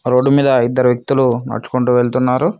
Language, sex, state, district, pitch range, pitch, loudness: Telugu, male, Telangana, Mahabubabad, 125-135 Hz, 125 Hz, -15 LUFS